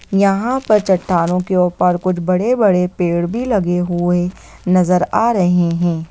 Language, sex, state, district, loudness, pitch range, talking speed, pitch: Hindi, female, Bihar, Lakhisarai, -16 LUFS, 175-200 Hz, 145 wpm, 180 Hz